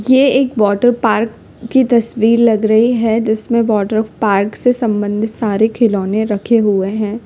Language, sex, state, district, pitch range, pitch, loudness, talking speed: Hindi, female, Uttar Pradesh, Lalitpur, 210-235 Hz, 220 Hz, -14 LUFS, 140 wpm